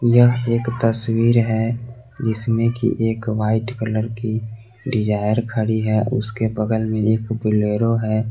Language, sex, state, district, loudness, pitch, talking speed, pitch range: Hindi, male, Jharkhand, Garhwa, -20 LUFS, 110 Hz, 135 wpm, 110-115 Hz